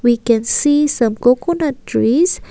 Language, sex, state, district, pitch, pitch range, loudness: English, female, Assam, Kamrup Metropolitan, 245 Hz, 230-295 Hz, -15 LUFS